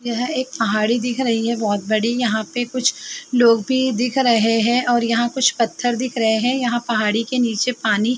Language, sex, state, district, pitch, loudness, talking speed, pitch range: Hindi, female, Uttar Pradesh, Muzaffarnagar, 240 Hz, -19 LUFS, 215 wpm, 225-250 Hz